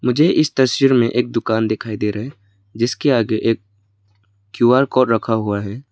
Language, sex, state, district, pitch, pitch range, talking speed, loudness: Hindi, male, Arunachal Pradesh, Lower Dibang Valley, 115 Hz, 105-125 Hz, 180 wpm, -17 LUFS